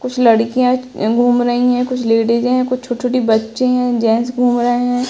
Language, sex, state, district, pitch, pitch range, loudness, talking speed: Hindi, female, Uttar Pradesh, Hamirpur, 245 Hz, 235-250 Hz, -15 LUFS, 200 wpm